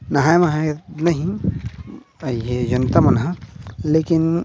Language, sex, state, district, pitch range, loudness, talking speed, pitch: Chhattisgarhi, male, Chhattisgarh, Rajnandgaon, 125-165 Hz, -19 LUFS, 120 wpm, 155 Hz